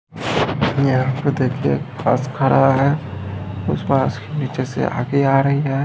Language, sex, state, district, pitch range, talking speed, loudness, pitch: Hindi, male, Odisha, Khordha, 110-140 Hz, 145 wpm, -19 LUFS, 135 Hz